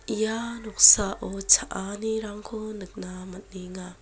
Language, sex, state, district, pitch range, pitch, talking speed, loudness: Garo, female, Meghalaya, West Garo Hills, 190-220 Hz, 210 Hz, 75 wpm, -21 LUFS